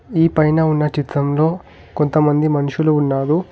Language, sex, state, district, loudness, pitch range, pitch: Telugu, male, Telangana, Hyderabad, -17 LUFS, 145-155 Hz, 150 Hz